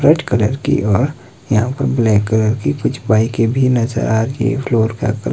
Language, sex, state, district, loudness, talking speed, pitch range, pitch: Hindi, male, Himachal Pradesh, Shimla, -16 LUFS, 225 wpm, 110-135 Hz, 120 Hz